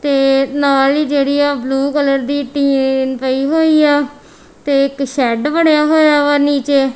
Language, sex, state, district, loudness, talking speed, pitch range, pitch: Punjabi, female, Punjab, Kapurthala, -14 LUFS, 165 wpm, 270-290 Hz, 280 Hz